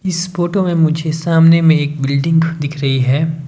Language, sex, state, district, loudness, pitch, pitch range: Hindi, male, Himachal Pradesh, Shimla, -14 LUFS, 160 Hz, 145-165 Hz